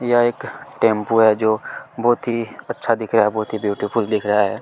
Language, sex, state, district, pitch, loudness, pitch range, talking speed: Hindi, male, Chhattisgarh, Kabirdham, 110 Hz, -19 LUFS, 105-115 Hz, 220 wpm